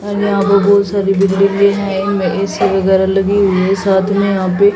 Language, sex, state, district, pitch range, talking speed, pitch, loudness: Hindi, female, Haryana, Jhajjar, 195-200 Hz, 200 wpm, 195 Hz, -13 LUFS